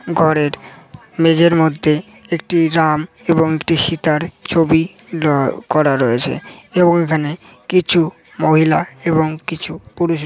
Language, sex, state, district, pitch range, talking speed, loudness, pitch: Bengali, male, West Bengal, Jhargram, 155-170 Hz, 110 wpm, -16 LUFS, 160 Hz